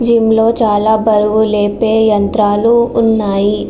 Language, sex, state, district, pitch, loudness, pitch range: Telugu, female, Andhra Pradesh, Srikakulam, 220 Hz, -12 LUFS, 210-225 Hz